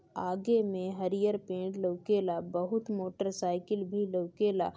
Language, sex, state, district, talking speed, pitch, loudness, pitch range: Bhojpuri, female, Bihar, Gopalganj, 125 wpm, 190 Hz, -33 LUFS, 180-205 Hz